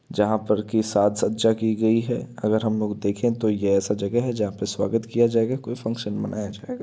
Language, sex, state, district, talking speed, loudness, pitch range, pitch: Hindi, male, Uttar Pradesh, Varanasi, 230 wpm, -23 LUFS, 105-115 Hz, 110 Hz